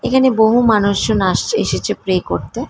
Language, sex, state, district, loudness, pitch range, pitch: Bengali, female, West Bengal, Malda, -15 LUFS, 200-245 Hz, 225 Hz